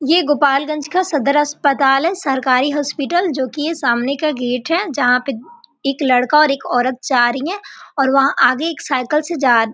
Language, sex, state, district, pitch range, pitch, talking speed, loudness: Hindi, female, Bihar, Gopalganj, 260-310 Hz, 280 Hz, 205 wpm, -16 LUFS